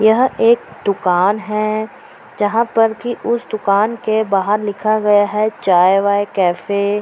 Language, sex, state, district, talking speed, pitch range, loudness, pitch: Hindi, female, Bihar, Purnia, 155 wpm, 200-220 Hz, -16 LUFS, 210 Hz